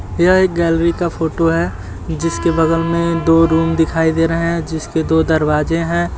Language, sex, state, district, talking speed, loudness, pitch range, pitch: Hindi, male, Uttar Pradesh, Etah, 185 wpm, -15 LUFS, 160-170 Hz, 165 Hz